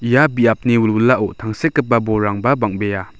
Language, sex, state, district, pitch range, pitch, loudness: Garo, male, Meghalaya, South Garo Hills, 105-125 Hz, 115 Hz, -16 LUFS